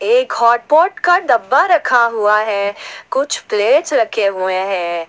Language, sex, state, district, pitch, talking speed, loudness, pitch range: Hindi, female, Jharkhand, Ranchi, 220 Hz, 140 wpm, -14 LUFS, 195-295 Hz